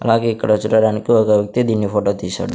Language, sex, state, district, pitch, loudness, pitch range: Telugu, male, Andhra Pradesh, Sri Satya Sai, 110 Hz, -16 LUFS, 105-115 Hz